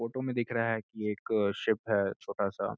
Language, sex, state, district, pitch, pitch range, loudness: Hindi, male, Uttar Pradesh, Gorakhpur, 110 Hz, 105-115 Hz, -32 LUFS